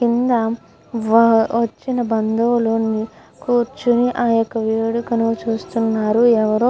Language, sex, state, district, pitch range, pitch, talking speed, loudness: Telugu, female, Andhra Pradesh, Guntur, 225-240 Hz, 230 Hz, 100 wpm, -18 LUFS